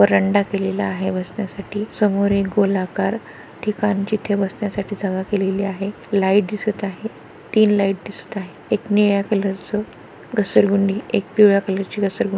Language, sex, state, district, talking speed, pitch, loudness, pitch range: Marathi, female, Maharashtra, Pune, 140 wpm, 200 Hz, -20 LUFS, 195-210 Hz